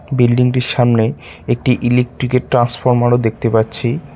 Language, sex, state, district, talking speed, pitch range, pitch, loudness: Bengali, male, West Bengal, Cooch Behar, 145 wpm, 120-125 Hz, 120 Hz, -15 LUFS